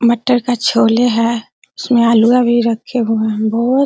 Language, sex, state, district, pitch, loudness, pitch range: Hindi, female, Bihar, Araria, 235 Hz, -14 LUFS, 225-245 Hz